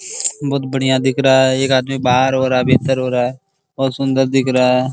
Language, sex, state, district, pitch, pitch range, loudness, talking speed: Hindi, male, Bihar, Araria, 130 Hz, 130-135 Hz, -15 LUFS, 230 wpm